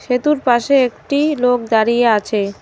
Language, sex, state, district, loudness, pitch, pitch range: Bengali, female, West Bengal, Cooch Behar, -15 LUFS, 245 Hz, 225-275 Hz